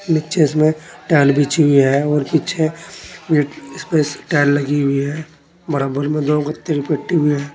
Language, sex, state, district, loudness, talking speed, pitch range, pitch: Hindi, male, Uttar Pradesh, Saharanpur, -17 LUFS, 185 wpm, 145-160 Hz, 150 Hz